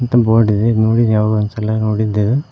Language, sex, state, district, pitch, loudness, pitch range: Kannada, male, Karnataka, Koppal, 110 Hz, -15 LUFS, 110-115 Hz